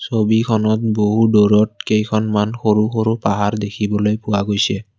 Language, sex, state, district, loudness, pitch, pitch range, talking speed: Assamese, male, Assam, Kamrup Metropolitan, -17 LUFS, 105 Hz, 105-110 Hz, 120 wpm